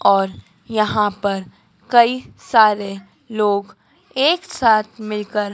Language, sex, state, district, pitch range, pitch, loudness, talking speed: Hindi, female, Madhya Pradesh, Dhar, 200-230 Hz, 215 Hz, -18 LUFS, 100 wpm